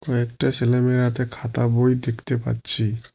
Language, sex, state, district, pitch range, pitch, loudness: Bengali, male, West Bengal, Cooch Behar, 120-125 Hz, 120 Hz, -20 LUFS